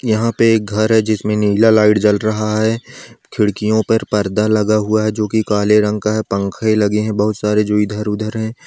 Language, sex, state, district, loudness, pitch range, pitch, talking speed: Angika, male, Bihar, Samastipur, -15 LUFS, 105-110 Hz, 105 Hz, 215 wpm